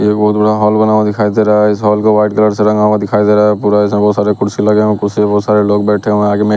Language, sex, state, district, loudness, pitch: Hindi, male, Bihar, West Champaran, -11 LUFS, 105 Hz